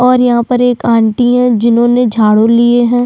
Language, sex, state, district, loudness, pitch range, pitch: Hindi, female, Chhattisgarh, Sukma, -10 LUFS, 230-245 Hz, 240 Hz